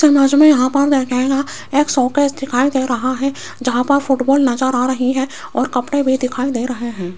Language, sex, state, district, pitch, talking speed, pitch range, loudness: Hindi, female, Rajasthan, Jaipur, 260 Hz, 210 wpm, 250-275 Hz, -16 LUFS